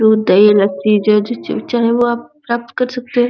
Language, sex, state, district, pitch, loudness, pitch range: Hindi, female, Uttar Pradesh, Deoria, 235 Hz, -14 LUFS, 210-240 Hz